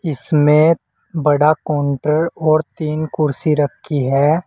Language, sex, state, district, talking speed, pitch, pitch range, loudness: Hindi, male, Uttar Pradesh, Saharanpur, 105 wpm, 155 Hz, 145-160 Hz, -16 LUFS